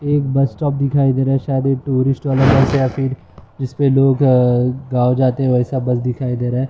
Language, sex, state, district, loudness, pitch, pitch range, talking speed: Hindi, male, Maharashtra, Mumbai Suburban, -16 LUFS, 135 Hz, 125-135 Hz, 250 wpm